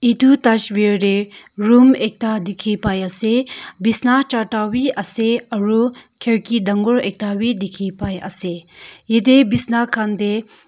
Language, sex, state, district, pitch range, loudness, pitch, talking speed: Nagamese, female, Nagaland, Kohima, 205-240 Hz, -17 LUFS, 220 Hz, 135 wpm